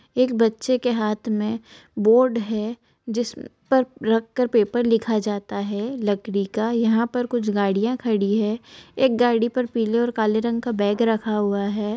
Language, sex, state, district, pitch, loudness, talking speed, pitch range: Hindi, female, Chhattisgarh, Balrampur, 225 Hz, -22 LUFS, 170 wpm, 215-240 Hz